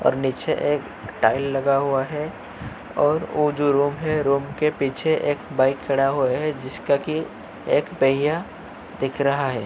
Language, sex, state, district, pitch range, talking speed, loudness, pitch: Hindi, male, Uttar Pradesh, Jyotiba Phule Nagar, 135-150 Hz, 170 wpm, -22 LUFS, 140 Hz